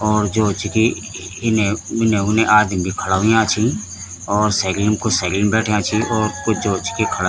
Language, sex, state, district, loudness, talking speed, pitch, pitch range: Garhwali, male, Uttarakhand, Tehri Garhwal, -18 LUFS, 205 wpm, 105 Hz, 95-110 Hz